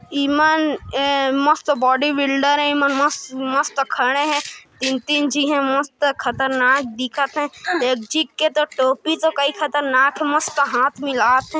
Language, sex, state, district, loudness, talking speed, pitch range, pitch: Hindi, female, Chhattisgarh, Kabirdham, -18 LUFS, 155 wpm, 265-295 Hz, 280 Hz